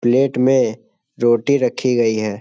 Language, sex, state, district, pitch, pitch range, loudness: Hindi, male, Bihar, Jamui, 125 Hz, 115-135 Hz, -17 LUFS